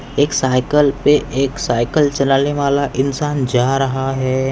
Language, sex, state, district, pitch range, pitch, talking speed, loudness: Hindi, male, Maharashtra, Pune, 130-145 Hz, 135 Hz, 145 wpm, -16 LUFS